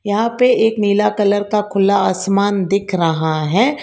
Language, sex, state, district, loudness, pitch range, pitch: Hindi, female, Karnataka, Bangalore, -16 LUFS, 195-215 Hz, 205 Hz